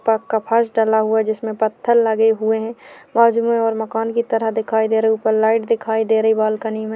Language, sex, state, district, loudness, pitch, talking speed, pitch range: Hindi, female, Chhattisgarh, Korba, -18 LUFS, 220 Hz, 240 wpm, 220-225 Hz